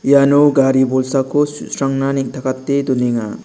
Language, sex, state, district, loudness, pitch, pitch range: Garo, male, Meghalaya, West Garo Hills, -15 LUFS, 135 Hz, 130-140 Hz